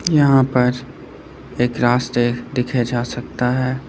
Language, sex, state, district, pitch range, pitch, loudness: Hindi, male, Uttar Pradesh, Lucknow, 120-130 Hz, 125 Hz, -18 LUFS